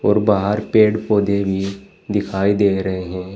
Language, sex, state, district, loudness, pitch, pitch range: Hindi, male, Uttar Pradesh, Saharanpur, -18 LUFS, 100 Hz, 95-105 Hz